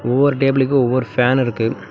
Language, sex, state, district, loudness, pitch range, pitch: Tamil, male, Tamil Nadu, Namakkal, -17 LUFS, 125-135 Hz, 130 Hz